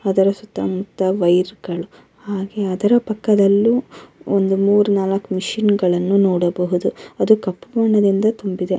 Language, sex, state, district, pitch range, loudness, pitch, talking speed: Kannada, female, Karnataka, Bellary, 185-210 Hz, -18 LUFS, 195 Hz, 125 wpm